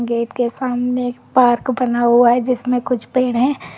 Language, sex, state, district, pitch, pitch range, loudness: Hindi, female, Uttar Pradesh, Lalitpur, 250 Hz, 240-255 Hz, -17 LUFS